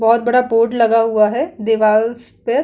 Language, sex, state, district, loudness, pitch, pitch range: Hindi, female, Chhattisgarh, Kabirdham, -15 LUFS, 230 Hz, 225-240 Hz